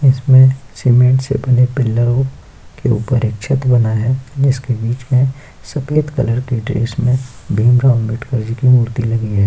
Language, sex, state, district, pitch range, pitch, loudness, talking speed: Hindi, male, Uttar Pradesh, Jyotiba Phule Nagar, 115-130 Hz, 125 Hz, -15 LUFS, 170 wpm